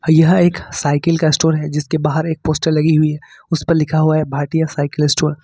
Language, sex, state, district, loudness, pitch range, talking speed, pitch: Hindi, male, Jharkhand, Ranchi, -16 LUFS, 150-160 Hz, 240 wpm, 155 Hz